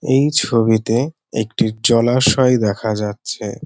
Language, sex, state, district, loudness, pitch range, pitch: Bengali, male, West Bengal, North 24 Parganas, -17 LUFS, 110-130 Hz, 115 Hz